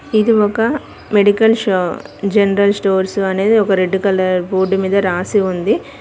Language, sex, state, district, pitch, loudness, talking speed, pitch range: Telugu, female, Telangana, Mahabubabad, 200 Hz, -15 LUFS, 140 wpm, 190-210 Hz